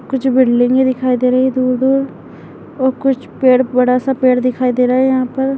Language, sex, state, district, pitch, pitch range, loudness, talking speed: Hindi, female, Bihar, Madhepura, 255 Hz, 250-265 Hz, -14 LUFS, 205 wpm